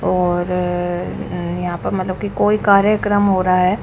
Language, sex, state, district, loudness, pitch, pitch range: Hindi, female, Punjab, Kapurthala, -17 LUFS, 185 Hz, 175-200 Hz